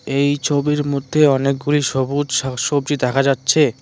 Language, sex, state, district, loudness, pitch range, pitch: Bengali, male, West Bengal, Cooch Behar, -17 LUFS, 135-145 Hz, 140 Hz